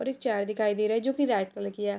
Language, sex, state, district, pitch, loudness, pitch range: Hindi, female, Bihar, Sitamarhi, 215 Hz, -28 LUFS, 205-250 Hz